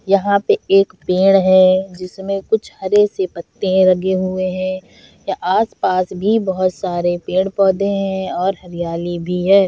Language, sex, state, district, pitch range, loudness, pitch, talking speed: Hindi, female, Bihar, Bhagalpur, 185-195 Hz, -17 LUFS, 190 Hz, 150 wpm